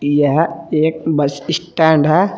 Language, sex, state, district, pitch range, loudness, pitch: Hindi, male, Uttar Pradesh, Saharanpur, 150-165 Hz, -15 LUFS, 160 Hz